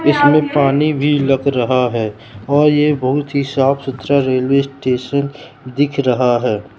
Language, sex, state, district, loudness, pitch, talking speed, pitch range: Hindi, male, Madhya Pradesh, Katni, -15 LUFS, 140 Hz, 150 wpm, 130-145 Hz